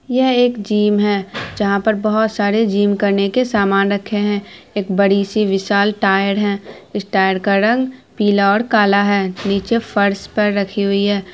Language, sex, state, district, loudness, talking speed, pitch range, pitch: Hindi, female, Bihar, Araria, -16 LUFS, 180 wpm, 200-215 Hz, 205 Hz